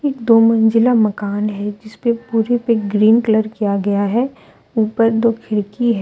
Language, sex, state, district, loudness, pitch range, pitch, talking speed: Hindi, female, Jharkhand, Deoghar, -16 LUFS, 210-230 Hz, 225 Hz, 170 wpm